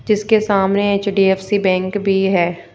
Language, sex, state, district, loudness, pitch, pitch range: Hindi, female, Rajasthan, Jaipur, -16 LUFS, 195 Hz, 190-205 Hz